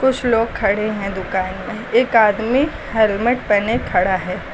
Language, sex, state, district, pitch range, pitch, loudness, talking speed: Hindi, female, Uttar Pradesh, Lucknow, 195-235 Hz, 215 Hz, -18 LUFS, 160 wpm